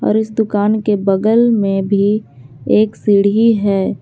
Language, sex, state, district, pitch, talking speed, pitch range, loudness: Hindi, female, Jharkhand, Garhwa, 205 Hz, 150 wpm, 200-220 Hz, -14 LUFS